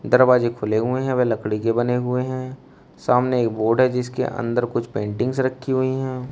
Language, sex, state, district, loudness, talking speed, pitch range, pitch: Hindi, male, Uttar Pradesh, Shamli, -21 LUFS, 200 wpm, 120-130 Hz, 125 Hz